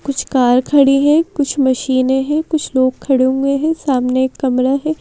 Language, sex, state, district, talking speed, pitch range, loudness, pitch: Hindi, female, Madhya Pradesh, Bhopal, 190 wpm, 260-290 Hz, -15 LUFS, 270 Hz